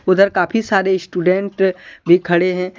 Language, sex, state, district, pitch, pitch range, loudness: Hindi, male, Jharkhand, Deoghar, 185 Hz, 180-195 Hz, -16 LUFS